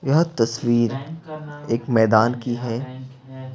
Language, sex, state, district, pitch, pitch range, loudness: Hindi, male, Bihar, Patna, 130 Hz, 115-140 Hz, -21 LUFS